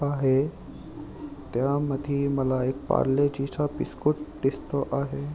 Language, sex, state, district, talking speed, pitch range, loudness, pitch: Marathi, male, Maharashtra, Aurangabad, 100 wpm, 135-145 Hz, -27 LUFS, 140 Hz